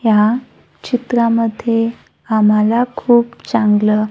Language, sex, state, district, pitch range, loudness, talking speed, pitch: Marathi, female, Maharashtra, Gondia, 215-235 Hz, -15 LUFS, 75 wpm, 230 Hz